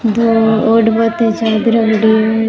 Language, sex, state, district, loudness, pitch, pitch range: Rajasthani, female, Rajasthan, Churu, -12 LUFS, 225 Hz, 220-230 Hz